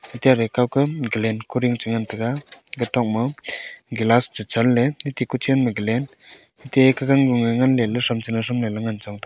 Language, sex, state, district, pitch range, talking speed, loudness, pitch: Wancho, male, Arunachal Pradesh, Longding, 115-130 Hz, 180 wpm, -21 LUFS, 120 Hz